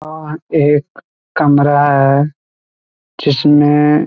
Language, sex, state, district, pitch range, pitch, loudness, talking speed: Hindi, male, Bihar, East Champaran, 145-150 Hz, 145 Hz, -12 LUFS, 90 wpm